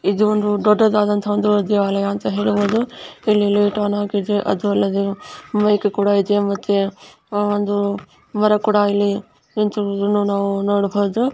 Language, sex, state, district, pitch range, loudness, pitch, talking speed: Kannada, female, Karnataka, Bijapur, 200-210 Hz, -18 LUFS, 205 Hz, 110 wpm